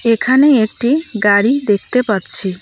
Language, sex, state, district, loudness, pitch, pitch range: Bengali, female, West Bengal, Cooch Behar, -13 LUFS, 230 Hz, 205-255 Hz